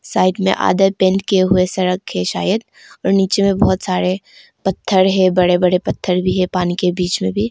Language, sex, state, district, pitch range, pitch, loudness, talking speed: Hindi, female, Arunachal Pradesh, Longding, 180-195 Hz, 185 Hz, -16 LUFS, 205 wpm